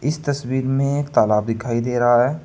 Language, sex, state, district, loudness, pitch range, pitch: Hindi, male, Uttar Pradesh, Saharanpur, -19 LUFS, 120-145 Hz, 130 Hz